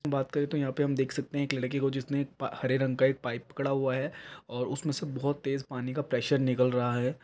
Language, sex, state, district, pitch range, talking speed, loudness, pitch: Hindi, male, Chhattisgarh, Raigarh, 130-140 Hz, 280 wpm, -31 LUFS, 135 Hz